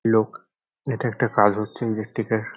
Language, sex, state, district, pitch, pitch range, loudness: Bengali, male, West Bengal, North 24 Parganas, 110 Hz, 110-120 Hz, -23 LUFS